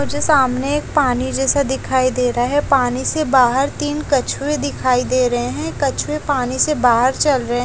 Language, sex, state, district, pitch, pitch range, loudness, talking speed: Hindi, female, Haryana, Charkhi Dadri, 265 Hz, 250-290 Hz, -17 LUFS, 190 wpm